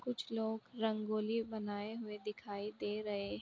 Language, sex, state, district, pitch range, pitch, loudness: Hindi, female, Jharkhand, Sahebganj, 210-220 Hz, 215 Hz, -40 LUFS